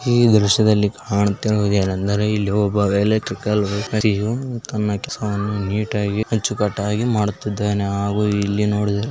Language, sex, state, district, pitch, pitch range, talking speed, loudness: Kannada, male, Karnataka, Belgaum, 105 Hz, 100-110 Hz, 120 wpm, -19 LUFS